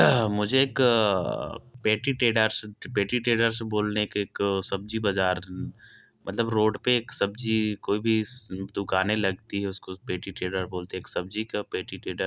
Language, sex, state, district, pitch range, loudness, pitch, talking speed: Hindi, male, Chhattisgarh, Korba, 95-115 Hz, -27 LUFS, 105 Hz, 125 wpm